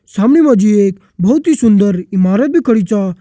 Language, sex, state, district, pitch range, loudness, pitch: Kumaoni, male, Uttarakhand, Tehri Garhwal, 195-260 Hz, -11 LUFS, 210 Hz